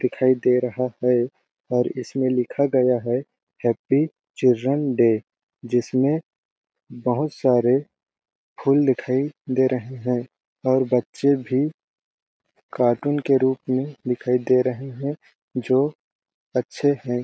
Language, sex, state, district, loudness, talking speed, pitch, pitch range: Hindi, male, Chhattisgarh, Balrampur, -22 LUFS, 120 wpm, 130 Hz, 125-140 Hz